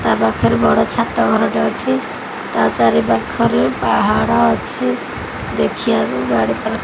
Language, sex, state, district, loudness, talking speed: Odia, female, Odisha, Khordha, -16 LUFS, 115 wpm